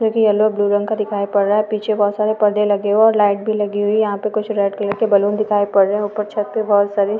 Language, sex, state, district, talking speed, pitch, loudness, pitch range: Hindi, female, Maharashtra, Aurangabad, 290 wpm, 210 Hz, -17 LUFS, 205-215 Hz